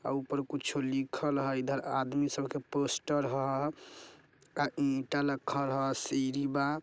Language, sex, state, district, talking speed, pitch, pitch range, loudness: Bajjika, male, Bihar, Vaishali, 140 wpm, 140 Hz, 135-145 Hz, -33 LUFS